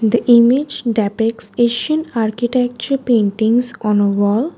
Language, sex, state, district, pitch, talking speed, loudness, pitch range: English, female, Gujarat, Valsad, 235 Hz, 120 wpm, -16 LUFS, 220-245 Hz